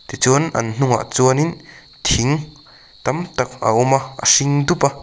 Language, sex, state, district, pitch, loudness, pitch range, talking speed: Mizo, male, Mizoram, Aizawl, 135 Hz, -17 LUFS, 120-150 Hz, 180 wpm